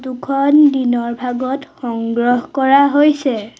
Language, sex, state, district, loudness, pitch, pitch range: Assamese, female, Assam, Sonitpur, -15 LUFS, 260 Hz, 240-280 Hz